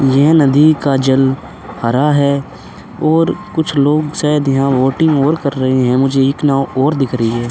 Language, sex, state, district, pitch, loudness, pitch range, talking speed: Hindi, male, Uttar Pradesh, Hamirpur, 140 Hz, -13 LUFS, 135-150 Hz, 185 wpm